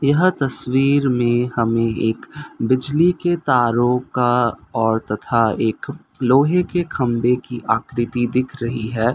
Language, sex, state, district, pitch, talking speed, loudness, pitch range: Hindi, male, Assam, Kamrup Metropolitan, 125 Hz, 130 wpm, -19 LUFS, 115-135 Hz